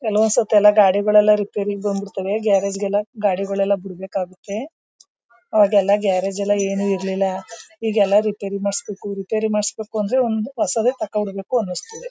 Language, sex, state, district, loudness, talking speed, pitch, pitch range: Kannada, female, Karnataka, Mysore, -20 LUFS, 110 wpm, 205 Hz, 200-220 Hz